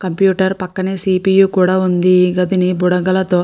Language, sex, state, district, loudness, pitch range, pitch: Telugu, female, Andhra Pradesh, Chittoor, -14 LUFS, 180-190 Hz, 185 Hz